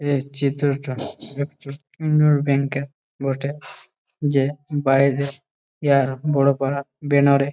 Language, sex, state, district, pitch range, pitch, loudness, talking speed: Bengali, male, West Bengal, Malda, 140-145 Hz, 140 Hz, -21 LUFS, 120 wpm